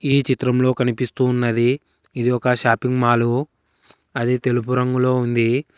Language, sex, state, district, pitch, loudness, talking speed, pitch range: Telugu, male, Telangana, Hyderabad, 125 Hz, -19 LUFS, 125 wpm, 120-125 Hz